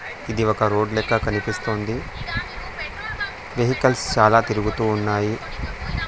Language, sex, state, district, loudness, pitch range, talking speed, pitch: Telugu, male, Andhra Pradesh, Sri Satya Sai, -22 LUFS, 105-115 Hz, 90 wpm, 110 Hz